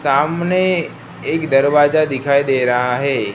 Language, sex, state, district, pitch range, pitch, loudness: Hindi, male, Gujarat, Gandhinagar, 135-155 Hz, 140 Hz, -16 LUFS